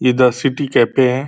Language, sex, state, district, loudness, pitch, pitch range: Hindi, male, Bihar, Purnia, -15 LUFS, 130 Hz, 125-135 Hz